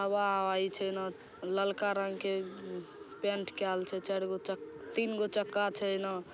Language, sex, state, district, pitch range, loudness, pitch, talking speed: Maithili, female, Bihar, Saharsa, 190-200 Hz, -35 LUFS, 195 Hz, 170 wpm